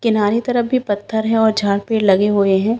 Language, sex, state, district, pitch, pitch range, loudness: Hindi, female, Bihar, Jahanabad, 220 Hz, 205-225 Hz, -16 LUFS